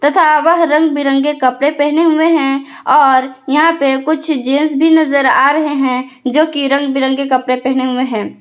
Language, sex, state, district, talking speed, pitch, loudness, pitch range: Hindi, female, Jharkhand, Palamu, 185 wpm, 280 Hz, -12 LUFS, 265-305 Hz